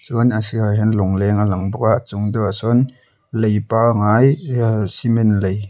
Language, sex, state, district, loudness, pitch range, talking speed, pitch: Mizo, male, Mizoram, Aizawl, -17 LUFS, 105-115 Hz, 160 wpm, 110 Hz